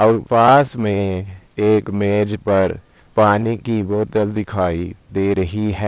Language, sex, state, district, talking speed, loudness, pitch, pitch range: Hindi, male, Uttar Pradesh, Saharanpur, 135 wpm, -18 LUFS, 105 Hz, 100-110 Hz